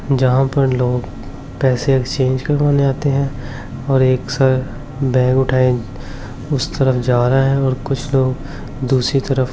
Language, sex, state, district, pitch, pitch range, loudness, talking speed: Hindi, male, Delhi, New Delhi, 130 Hz, 125-135 Hz, -17 LUFS, 145 wpm